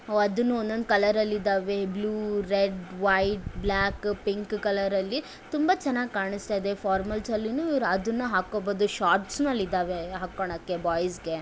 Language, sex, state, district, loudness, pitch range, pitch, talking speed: Kannada, female, Karnataka, Bellary, -27 LUFS, 195-215 Hz, 205 Hz, 140 wpm